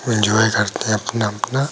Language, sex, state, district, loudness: Hindi, male, Uttar Pradesh, Hamirpur, -18 LUFS